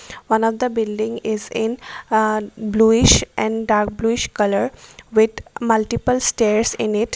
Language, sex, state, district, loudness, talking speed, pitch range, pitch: English, female, Assam, Kamrup Metropolitan, -19 LUFS, 140 wpm, 215-230 Hz, 225 Hz